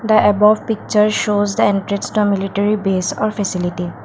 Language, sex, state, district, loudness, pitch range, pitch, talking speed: English, female, Assam, Kamrup Metropolitan, -16 LUFS, 195-215 Hz, 205 Hz, 165 wpm